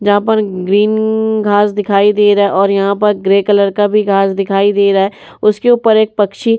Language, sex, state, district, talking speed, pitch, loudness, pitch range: Hindi, female, Uttar Pradesh, Jyotiba Phule Nagar, 230 wpm, 205 Hz, -12 LUFS, 200-215 Hz